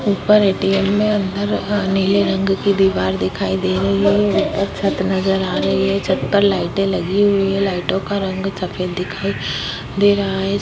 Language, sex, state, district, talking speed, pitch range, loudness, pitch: Hindi, female, Uttarakhand, Tehri Garhwal, 180 wpm, 190-200 Hz, -17 LUFS, 195 Hz